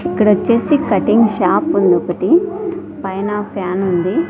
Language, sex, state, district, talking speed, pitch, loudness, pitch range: Telugu, female, Andhra Pradesh, Sri Satya Sai, 125 wpm, 210 Hz, -15 LUFS, 190-285 Hz